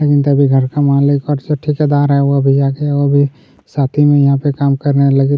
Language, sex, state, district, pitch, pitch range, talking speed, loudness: Hindi, male, Chhattisgarh, Kabirdham, 140 Hz, 140-145 Hz, 245 wpm, -13 LUFS